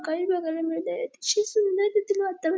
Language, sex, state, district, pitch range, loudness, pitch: Marathi, female, Maharashtra, Dhule, 330-415 Hz, -26 LUFS, 385 Hz